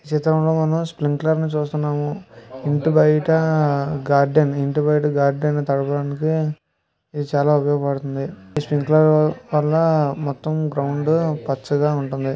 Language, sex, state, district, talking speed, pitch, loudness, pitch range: Telugu, male, Andhra Pradesh, Visakhapatnam, 105 wpm, 150 Hz, -20 LUFS, 140-155 Hz